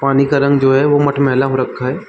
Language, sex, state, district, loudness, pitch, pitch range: Hindi, male, Chhattisgarh, Balrampur, -14 LUFS, 135 Hz, 135-140 Hz